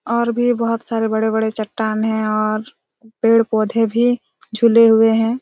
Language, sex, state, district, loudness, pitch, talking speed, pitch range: Hindi, female, Chhattisgarh, Raigarh, -17 LUFS, 225 Hz, 155 wpm, 220-230 Hz